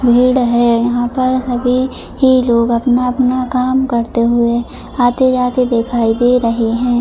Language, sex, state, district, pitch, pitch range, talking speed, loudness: Hindi, female, Jharkhand, Jamtara, 245 Hz, 235-255 Hz, 155 wpm, -14 LUFS